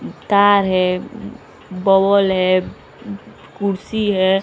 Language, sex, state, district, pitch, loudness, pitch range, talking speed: Hindi, female, Bihar, West Champaran, 195 Hz, -16 LUFS, 185-200 Hz, 80 wpm